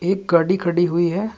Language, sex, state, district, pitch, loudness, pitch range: Hindi, male, Uttar Pradesh, Shamli, 175 Hz, -19 LUFS, 170-195 Hz